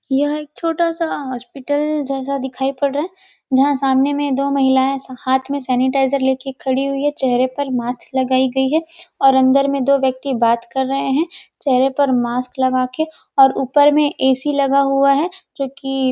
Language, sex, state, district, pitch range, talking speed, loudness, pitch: Hindi, female, Chhattisgarh, Rajnandgaon, 265-290 Hz, 195 wpm, -17 LUFS, 275 Hz